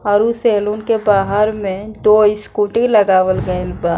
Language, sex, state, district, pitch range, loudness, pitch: Bhojpuri, female, Bihar, East Champaran, 195-215 Hz, -15 LUFS, 210 Hz